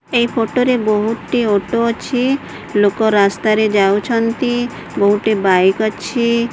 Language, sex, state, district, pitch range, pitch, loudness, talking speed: Odia, female, Odisha, Sambalpur, 205-235 Hz, 220 Hz, -16 LUFS, 110 wpm